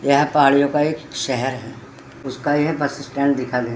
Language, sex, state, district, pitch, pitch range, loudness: Hindi, male, Uttarakhand, Tehri Garhwal, 140 Hz, 130-145 Hz, -19 LUFS